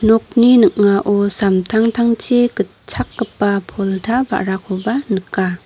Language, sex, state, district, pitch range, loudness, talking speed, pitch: Garo, female, Meghalaya, North Garo Hills, 195-235 Hz, -16 LUFS, 75 wpm, 205 Hz